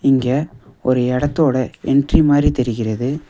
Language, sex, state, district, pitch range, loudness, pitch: Tamil, male, Tamil Nadu, Nilgiris, 125-145 Hz, -17 LUFS, 135 Hz